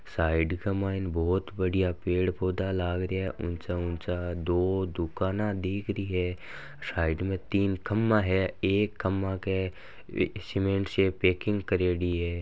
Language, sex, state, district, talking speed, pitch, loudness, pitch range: Marwari, male, Rajasthan, Nagaur, 135 wpm, 95 Hz, -29 LUFS, 90-95 Hz